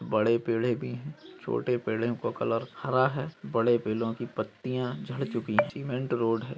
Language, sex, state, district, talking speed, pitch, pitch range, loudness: Hindi, male, Maharashtra, Nagpur, 175 wpm, 120 Hz, 115-130 Hz, -30 LUFS